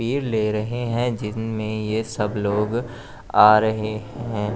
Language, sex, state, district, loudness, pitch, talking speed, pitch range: Hindi, male, Delhi, New Delhi, -22 LUFS, 110 Hz, 145 wpm, 105-120 Hz